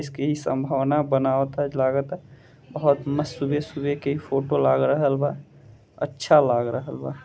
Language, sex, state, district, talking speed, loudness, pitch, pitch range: Bhojpuri, male, Bihar, Gopalganj, 140 wpm, -23 LUFS, 140 Hz, 135-145 Hz